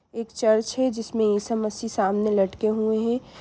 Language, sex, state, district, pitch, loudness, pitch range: Hindi, female, Jharkhand, Sahebganj, 220 Hz, -24 LUFS, 215-230 Hz